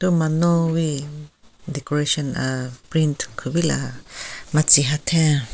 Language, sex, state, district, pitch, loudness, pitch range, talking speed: Rengma, female, Nagaland, Kohima, 150 Hz, -20 LUFS, 140-160 Hz, 85 wpm